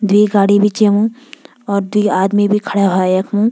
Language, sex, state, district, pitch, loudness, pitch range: Garhwali, female, Uttarakhand, Tehri Garhwal, 205 Hz, -14 LUFS, 200-215 Hz